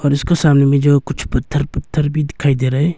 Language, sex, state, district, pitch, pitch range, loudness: Hindi, male, Arunachal Pradesh, Longding, 145 Hz, 140-150 Hz, -16 LUFS